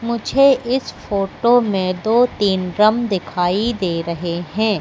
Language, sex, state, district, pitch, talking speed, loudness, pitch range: Hindi, female, Madhya Pradesh, Katni, 205 Hz, 135 wpm, -18 LUFS, 185-235 Hz